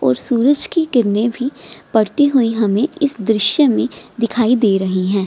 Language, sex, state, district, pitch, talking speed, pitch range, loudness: Hindi, female, Bihar, Gaya, 230 Hz, 170 wpm, 210-270 Hz, -15 LUFS